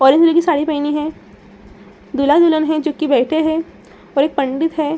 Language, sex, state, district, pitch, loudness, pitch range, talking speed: Hindi, female, Bihar, Saran, 310 Hz, -16 LUFS, 290-315 Hz, 190 wpm